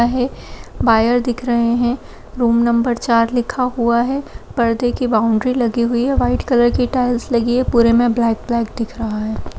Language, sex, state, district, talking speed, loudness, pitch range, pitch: Hindi, female, Uttar Pradesh, Budaun, 190 wpm, -17 LUFS, 230-245 Hz, 235 Hz